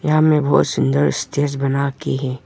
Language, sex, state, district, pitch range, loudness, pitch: Hindi, male, Arunachal Pradesh, Longding, 130-145 Hz, -18 LUFS, 140 Hz